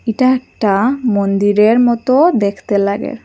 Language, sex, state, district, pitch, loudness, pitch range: Bengali, female, Assam, Hailakandi, 225 Hz, -13 LUFS, 200-255 Hz